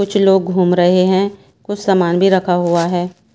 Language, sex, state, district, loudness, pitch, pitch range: Hindi, female, Himachal Pradesh, Shimla, -14 LUFS, 185 Hz, 180-195 Hz